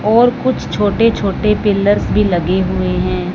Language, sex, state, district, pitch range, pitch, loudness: Hindi, male, Punjab, Fazilka, 185-220 Hz, 205 Hz, -14 LUFS